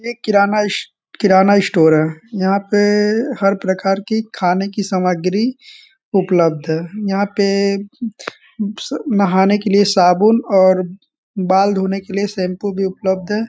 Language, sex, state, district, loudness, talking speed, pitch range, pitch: Hindi, male, Bihar, Sitamarhi, -16 LUFS, 140 wpm, 190-210 Hz, 200 Hz